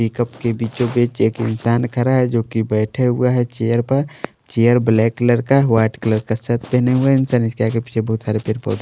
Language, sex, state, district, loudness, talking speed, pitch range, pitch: Hindi, male, Maharashtra, Washim, -18 LUFS, 230 wpm, 110-125 Hz, 120 Hz